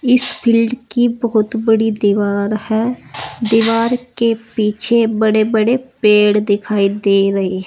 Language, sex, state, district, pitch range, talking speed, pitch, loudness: Hindi, female, Uttar Pradesh, Saharanpur, 210-235 Hz, 135 wpm, 220 Hz, -15 LUFS